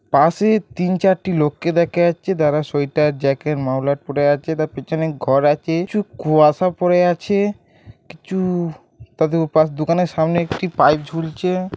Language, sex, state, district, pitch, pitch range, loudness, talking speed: Bengali, male, West Bengal, Dakshin Dinajpur, 160 Hz, 150-180 Hz, -18 LUFS, 165 wpm